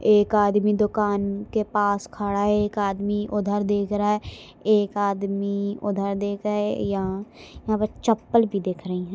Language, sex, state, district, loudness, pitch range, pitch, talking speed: Hindi, female, Chhattisgarh, Bilaspur, -24 LUFS, 200-210 Hz, 205 Hz, 175 wpm